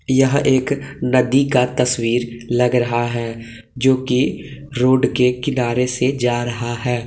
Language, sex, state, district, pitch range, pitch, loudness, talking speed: Hindi, male, Jharkhand, Deoghar, 120-130 Hz, 125 Hz, -18 LUFS, 145 wpm